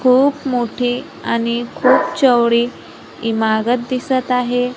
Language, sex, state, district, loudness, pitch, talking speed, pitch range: Marathi, female, Maharashtra, Gondia, -17 LUFS, 245 Hz, 100 wpm, 235-255 Hz